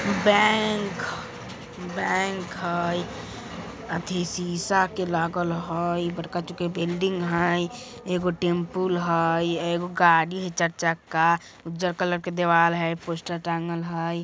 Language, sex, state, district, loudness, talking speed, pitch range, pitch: Bajjika, female, Bihar, Vaishali, -25 LUFS, 120 wpm, 170-180 Hz, 175 Hz